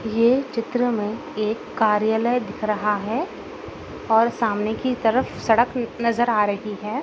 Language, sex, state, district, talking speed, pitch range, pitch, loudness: Hindi, female, Uttar Pradesh, Gorakhpur, 155 wpm, 215-240 Hz, 225 Hz, -22 LUFS